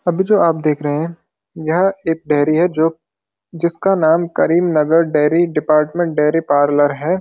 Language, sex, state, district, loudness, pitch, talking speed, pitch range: Hindi, male, Uttarakhand, Uttarkashi, -15 LUFS, 160 Hz, 160 wpm, 150-170 Hz